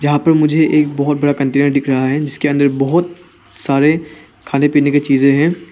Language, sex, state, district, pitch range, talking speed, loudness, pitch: Hindi, male, Arunachal Pradesh, Papum Pare, 140-155 Hz, 200 wpm, -14 LUFS, 145 Hz